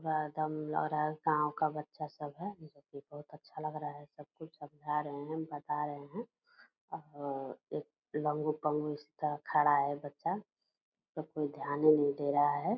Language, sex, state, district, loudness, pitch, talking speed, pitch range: Hindi, female, Bihar, Purnia, -35 LUFS, 150 Hz, 195 wpm, 145-155 Hz